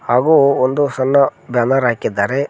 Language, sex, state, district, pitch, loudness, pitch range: Kannada, male, Karnataka, Koppal, 130 Hz, -15 LUFS, 125-140 Hz